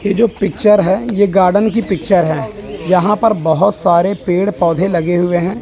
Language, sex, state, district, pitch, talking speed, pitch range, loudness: Hindi, male, Chandigarh, Chandigarh, 190 Hz, 190 wpm, 175-210 Hz, -13 LUFS